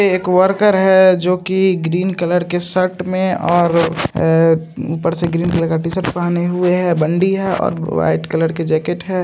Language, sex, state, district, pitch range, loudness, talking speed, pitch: Hindi, male, Bihar, Araria, 165-185 Hz, -15 LUFS, 195 wpm, 175 Hz